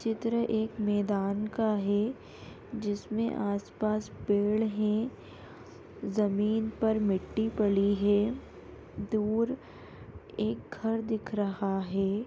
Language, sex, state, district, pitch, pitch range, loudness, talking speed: Hindi, female, Uttar Pradesh, Budaun, 215 Hz, 205-220 Hz, -30 LUFS, 100 wpm